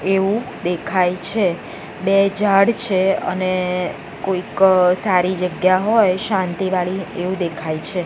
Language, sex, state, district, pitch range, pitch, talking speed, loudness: Gujarati, female, Gujarat, Gandhinagar, 180-195 Hz, 185 Hz, 120 wpm, -18 LUFS